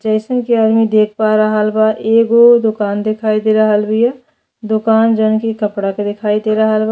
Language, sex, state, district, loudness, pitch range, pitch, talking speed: Bhojpuri, female, Uttar Pradesh, Deoria, -13 LUFS, 215-225 Hz, 220 Hz, 180 wpm